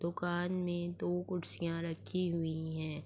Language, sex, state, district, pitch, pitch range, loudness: Urdu, female, Andhra Pradesh, Anantapur, 175 Hz, 165-175 Hz, -37 LUFS